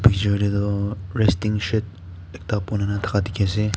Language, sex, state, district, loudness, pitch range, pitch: Nagamese, male, Nagaland, Kohima, -23 LUFS, 95-105 Hz, 100 Hz